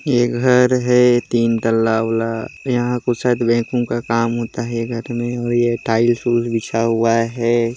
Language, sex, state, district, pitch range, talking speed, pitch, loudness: Hindi, male, Chhattisgarh, Jashpur, 115-120 Hz, 175 wpm, 120 Hz, -17 LUFS